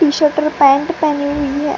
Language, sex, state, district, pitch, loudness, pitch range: Hindi, female, Bihar, Purnia, 295 Hz, -14 LUFS, 285-305 Hz